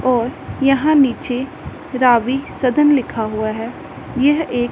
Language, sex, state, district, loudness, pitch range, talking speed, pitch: Hindi, female, Punjab, Pathankot, -17 LUFS, 240-280 Hz, 125 wpm, 255 Hz